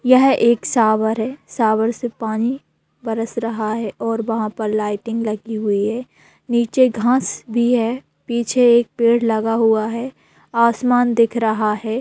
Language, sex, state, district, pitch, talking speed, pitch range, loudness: Hindi, female, Bihar, Purnia, 230 Hz, 155 wpm, 220-240 Hz, -18 LUFS